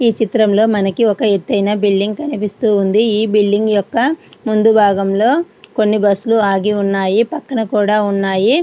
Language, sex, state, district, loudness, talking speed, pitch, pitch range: Telugu, female, Andhra Pradesh, Srikakulam, -14 LUFS, 130 wpm, 210 Hz, 200-225 Hz